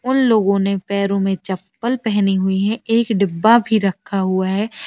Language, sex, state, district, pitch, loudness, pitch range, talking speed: Hindi, female, Uttar Pradesh, Lalitpur, 200 Hz, -17 LUFS, 195-225 Hz, 185 wpm